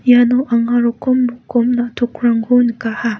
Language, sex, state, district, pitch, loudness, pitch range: Garo, female, Meghalaya, West Garo Hills, 240 Hz, -15 LUFS, 235-245 Hz